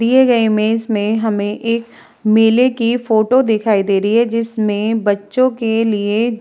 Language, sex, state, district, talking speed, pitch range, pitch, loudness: Hindi, female, Bihar, Vaishali, 170 wpm, 215-230 Hz, 225 Hz, -15 LUFS